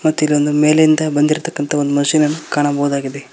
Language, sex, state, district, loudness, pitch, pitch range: Kannada, male, Karnataka, Koppal, -15 LUFS, 150 Hz, 145-155 Hz